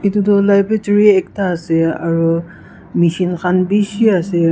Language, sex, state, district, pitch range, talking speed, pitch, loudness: Nagamese, female, Nagaland, Kohima, 170-205 Hz, 120 wpm, 185 Hz, -15 LUFS